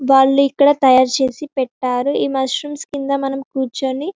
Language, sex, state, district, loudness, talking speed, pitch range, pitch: Telugu, female, Telangana, Karimnagar, -17 LUFS, 160 wpm, 265-280 Hz, 270 Hz